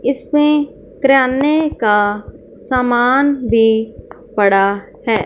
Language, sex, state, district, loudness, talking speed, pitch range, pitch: Hindi, female, Punjab, Fazilka, -14 LUFS, 80 wpm, 220-280 Hz, 250 Hz